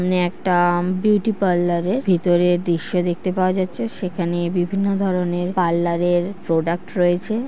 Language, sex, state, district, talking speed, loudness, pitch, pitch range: Bengali, female, West Bengal, North 24 Parganas, 130 wpm, -20 LUFS, 180 Hz, 175-190 Hz